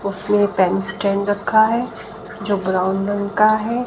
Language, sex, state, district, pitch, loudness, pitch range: Hindi, female, Haryana, Jhajjar, 205 Hz, -18 LUFS, 200-220 Hz